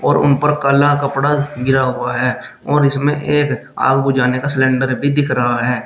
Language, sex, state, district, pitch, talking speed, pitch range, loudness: Hindi, male, Uttar Pradesh, Shamli, 135 Hz, 185 wpm, 130-145 Hz, -15 LUFS